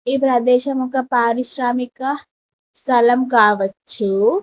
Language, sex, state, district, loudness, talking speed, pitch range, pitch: Telugu, female, Telangana, Mahabubabad, -17 LUFS, 80 wpm, 235-260 Hz, 250 Hz